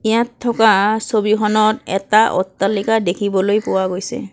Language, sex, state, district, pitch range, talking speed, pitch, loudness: Assamese, female, Assam, Kamrup Metropolitan, 195-225 Hz, 110 wpm, 215 Hz, -16 LUFS